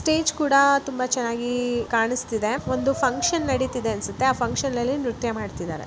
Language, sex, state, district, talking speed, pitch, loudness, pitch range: Kannada, male, Karnataka, Raichur, 135 wpm, 250 Hz, -23 LUFS, 235-275 Hz